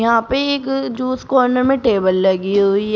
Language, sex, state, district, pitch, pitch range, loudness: Hindi, female, Uttar Pradesh, Shamli, 245 Hz, 200-265 Hz, -16 LUFS